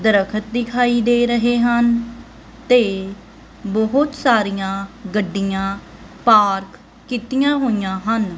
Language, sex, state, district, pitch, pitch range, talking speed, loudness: Punjabi, female, Punjab, Kapurthala, 225 Hz, 195-240 Hz, 95 wpm, -18 LUFS